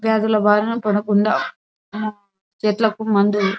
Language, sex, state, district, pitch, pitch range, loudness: Telugu, female, Andhra Pradesh, Anantapur, 210 Hz, 205-220 Hz, -19 LUFS